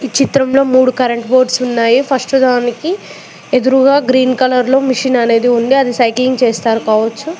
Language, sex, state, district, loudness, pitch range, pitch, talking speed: Telugu, female, Telangana, Mahabubabad, -12 LUFS, 240-270 Hz, 255 Hz, 145 wpm